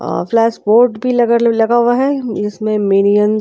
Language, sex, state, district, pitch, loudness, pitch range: Hindi, female, Chhattisgarh, Korba, 230 Hz, -13 LUFS, 210-240 Hz